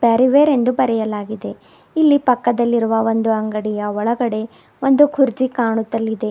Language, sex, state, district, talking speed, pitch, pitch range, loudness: Kannada, female, Karnataka, Bidar, 105 wpm, 235 Hz, 220-255 Hz, -17 LUFS